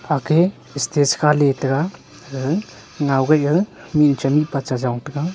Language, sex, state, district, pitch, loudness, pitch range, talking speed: Wancho, male, Arunachal Pradesh, Longding, 145 Hz, -19 LUFS, 135-155 Hz, 135 wpm